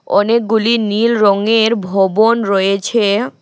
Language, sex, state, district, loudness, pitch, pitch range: Bengali, female, West Bengal, Alipurduar, -13 LUFS, 220 Hz, 200-230 Hz